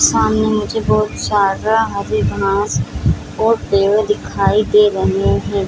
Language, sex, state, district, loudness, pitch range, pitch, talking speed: Hindi, female, Bihar, Jamui, -16 LUFS, 195-215 Hz, 210 Hz, 125 wpm